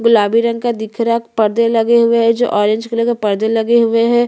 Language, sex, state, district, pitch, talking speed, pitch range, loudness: Hindi, female, Chhattisgarh, Bastar, 230 Hz, 225 wpm, 225-235 Hz, -14 LUFS